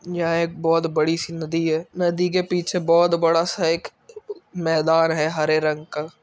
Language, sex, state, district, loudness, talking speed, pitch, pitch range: Hindi, male, Uttar Pradesh, Etah, -21 LUFS, 185 wpm, 165 Hz, 160-175 Hz